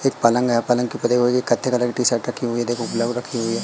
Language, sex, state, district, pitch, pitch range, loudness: Hindi, female, Madhya Pradesh, Katni, 120 Hz, 120-125 Hz, -20 LUFS